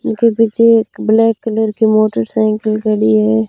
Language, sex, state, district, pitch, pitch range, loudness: Hindi, female, Rajasthan, Bikaner, 220 Hz, 215-225 Hz, -13 LUFS